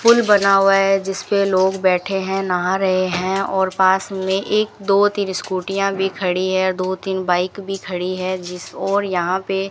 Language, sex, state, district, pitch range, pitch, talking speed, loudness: Hindi, female, Rajasthan, Bikaner, 185-195 Hz, 190 Hz, 200 wpm, -18 LUFS